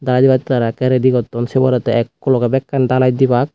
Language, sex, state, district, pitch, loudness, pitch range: Chakma, female, Tripura, West Tripura, 130 Hz, -15 LUFS, 120-130 Hz